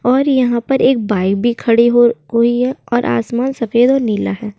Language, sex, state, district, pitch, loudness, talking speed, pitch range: Hindi, female, Uttar Pradesh, Jyotiba Phule Nagar, 240 Hz, -14 LUFS, 185 wpm, 230-255 Hz